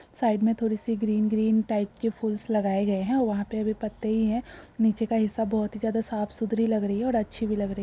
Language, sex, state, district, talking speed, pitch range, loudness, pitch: Hindi, female, Andhra Pradesh, Guntur, 270 wpm, 210-225 Hz, -27 LUFS, 220 Hz